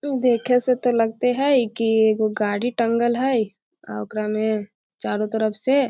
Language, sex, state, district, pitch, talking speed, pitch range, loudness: Maithili, female, Bihar, Muzaffarpur, 230 Hz, 185 wpm, 215-250 Hz, -21 LUFS